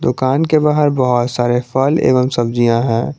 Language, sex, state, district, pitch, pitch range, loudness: Hindi, male, Jharkhand, Garhwa, 125 Hz, 120-145 Hz, -14 LUFS